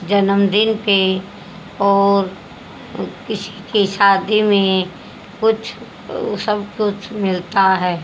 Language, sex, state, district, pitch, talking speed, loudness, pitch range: Hindi, female, Haryana, Jhajjar, 200 Hz, 90 wpm, -17 LUFS, 195-210 Hz